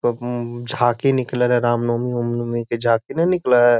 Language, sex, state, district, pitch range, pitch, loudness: Magahi, male, Bihar, Gaya, 120-125 Hz, 120 Hz, -20 LUFS